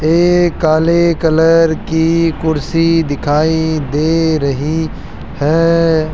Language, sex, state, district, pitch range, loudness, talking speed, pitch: Hindi, male, Rajasthan, Jaipur, 155-165 Hz, -13 LUFS, 90 wpm, 160 Hz